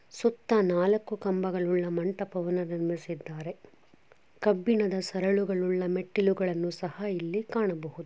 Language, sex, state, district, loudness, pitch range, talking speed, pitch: Kannada, female, Karnataka, Chamarajanagar, -29 LUFS, 175-200 Hz, 80 wpm, 185 Hz